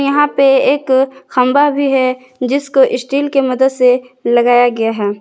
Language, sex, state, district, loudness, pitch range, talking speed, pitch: Hindi, female, Jharkhand, Garhwa, -13 LUFS, 250-275 Hz, 160 wpm, 265 Hz